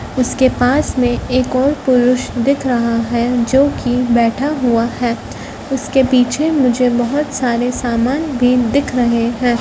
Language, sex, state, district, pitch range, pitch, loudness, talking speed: Hindi, female, Madhya Pradesh, Dhar, 240-265 Hz, 250 Hz, -15 LUFS, 150 wpm